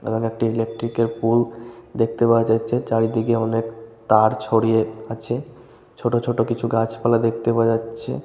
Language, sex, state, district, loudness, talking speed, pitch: Bengali, male, West Bengal, Malda, -21 LUFS, 145 wpm, 115 Hz